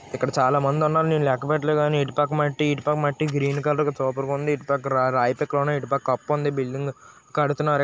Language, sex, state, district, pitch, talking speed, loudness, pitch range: Telugu, male, Andhra Pradesh, Srikakulam, 145 Hz, 190 wpm, -23 LUFS, 135-150 Hz